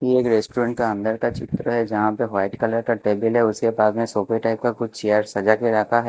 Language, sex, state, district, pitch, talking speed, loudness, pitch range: Hindi, male, Maharashtra, Mumbai Suburban, 115 Hz, 265 wpm, -21 LUFS, 105-120 Hz